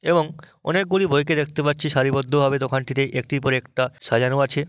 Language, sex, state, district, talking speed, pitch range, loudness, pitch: Bengali, male, West Bengal, Malda, 165 wpm, 135-155 Hz, -21 LUFS, 140 Hz